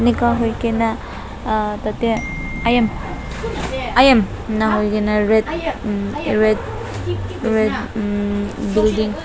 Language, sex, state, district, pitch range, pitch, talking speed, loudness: Nagamese, female, Nagaland, Dimapur, 210-230 Hz, 215 Hz, 85 wpm, -19 LUFS